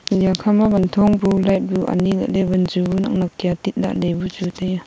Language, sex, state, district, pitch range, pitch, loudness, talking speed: Wancho, female, Arunachal Pradesh, Longding, 180-195 Hz, 185 Hz, -18 LUFS, 260 wpm